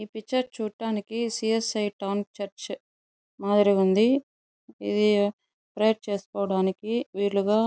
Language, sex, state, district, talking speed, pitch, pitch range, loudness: Telugu, female, Andhra Pradesh, Chittoor, 115 wpm, 210 Hz, 200-225 Hz, -26 LUFS